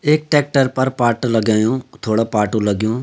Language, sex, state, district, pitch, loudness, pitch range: Garhwali, male, Uttarakhand, Uttarkashi, 120 Hz, -17 LUFS, 110-135 Hz